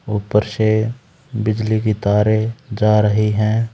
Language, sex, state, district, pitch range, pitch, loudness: Hindi, male, Haryana, Charkhi Dadri, 105-110 Hz, 110 Hz, -17 LUFS